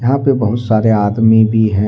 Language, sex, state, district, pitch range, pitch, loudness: Hindi, male, Jharkhand, Deoghar, 110-120 Hz, 110 Hz, -13 LUFS